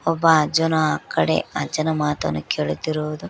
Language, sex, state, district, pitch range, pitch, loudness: Kannada, female, Karnataka, Koppal, 150-160 Hz, 155 Hz, -21 LUFS